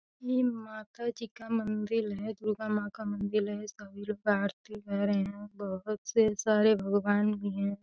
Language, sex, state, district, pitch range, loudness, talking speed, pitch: Hindi, female, Uttar Pradesh, Deoria, 205-220 Hz, -31 LUFS, 185 wpm, 210 Hz